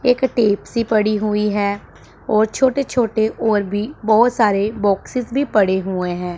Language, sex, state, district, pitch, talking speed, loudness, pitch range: Hindi, female, Punjab, Pathankot, 215 Hz, 170 wpm, -18 LUFS, 205-240 Hz